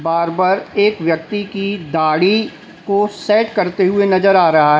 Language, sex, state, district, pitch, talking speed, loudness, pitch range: Hindi, male, Uttar Pradesh, Lalitpur, 190 Hz, 165 wpm, -15 LUFS, 165-205 Hz